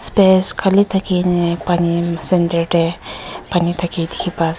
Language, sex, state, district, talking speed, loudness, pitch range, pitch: Nagamese, female, Nagaland, Kohima, 115 wpm, -16 LUFS, 170-185 Hz, 175 Hz